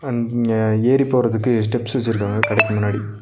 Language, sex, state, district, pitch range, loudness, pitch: Tamil, male, Tamil Nadu, Nilgiris, 110-120 Hz, -18 LUFS, 115 Hz